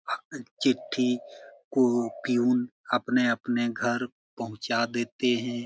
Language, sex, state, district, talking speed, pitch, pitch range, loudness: Hindi, male, Bihar, Jamui, 85 wpm, 120 Hz, 120-125 Hz, -27 LUFS